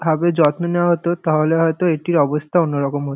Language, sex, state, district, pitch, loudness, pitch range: Bengali, male, West Bengal, North 24 Parganas, 165 Hz, -17 LUFS, 150-170 Hz